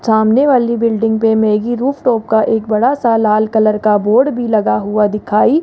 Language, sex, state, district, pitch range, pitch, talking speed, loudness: Hindi, male, Rajasthan, Jaipur, 215-240 Hz, 220 Hz, 190 wpm, -13 LUFS